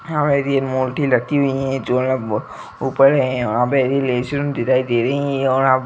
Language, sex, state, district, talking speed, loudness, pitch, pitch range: Hindi, male, Uttar Pradesh, Etah, 50 wpm, -18 LUFS, 135 Hz, 125-140 Hz